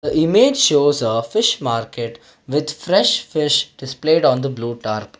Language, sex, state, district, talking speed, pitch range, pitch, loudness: English, male, Karnataka, Bangalore, 160 wpm, 115-155 Hz, 145 Hz, -17 LUFS